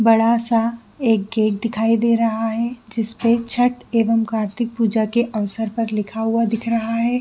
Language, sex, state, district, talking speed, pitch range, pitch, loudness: Hindi, female, Jharkhand, Jamtara, 185 wpm, 225-235 Hz, 230 Hz, -19 LUFS